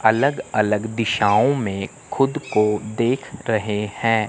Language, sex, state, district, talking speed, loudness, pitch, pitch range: Hindi, male, Chandigarh, Chandigarh, 125 wpm, -21 LUFS, 110 Hz, 105-125 Hz